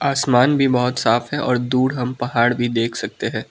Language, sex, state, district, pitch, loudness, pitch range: Hindi, male, Manipur, Imphal West, 125 Hz, -19 LUFS, 120-130 Hz